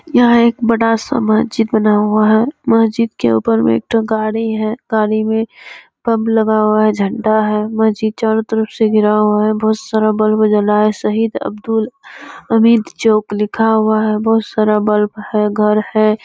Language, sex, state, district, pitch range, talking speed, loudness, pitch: Hindi, female, Bihar, Kishanganj, 215-225 Hz, 180 wpm, -14 LUFS, 220 Hz